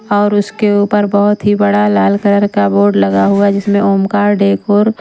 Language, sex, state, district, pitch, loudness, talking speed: Hindi, female, Maharashtra, Washim, 200 Hz, -11 LUFS, 190 wpm